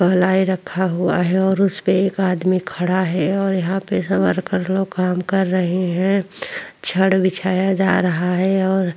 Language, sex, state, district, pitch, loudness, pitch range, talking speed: Hindi, female, Chhattisgarh, Korba, 185 Hz, -19 LUFS, 180-190 Hz, 185 wpm